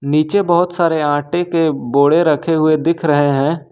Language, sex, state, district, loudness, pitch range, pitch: Hindi, male, Jharkhand, Ranchi, -15 LUFS, 145-170 Hz, 155 Hz